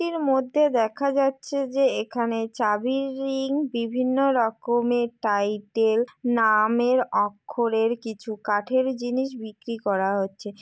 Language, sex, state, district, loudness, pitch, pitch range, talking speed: Bengali, female, West Bengal, Jalpaiguri, -24 LUFS, 235 Hz, 220-265 Hz, 115 wpm